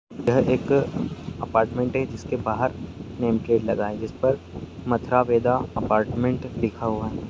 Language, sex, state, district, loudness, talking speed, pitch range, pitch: Hindi, male, Bihar, Darbhanga, -24 LUFS, 140 wpm, 110-125 Hz, 115 Hz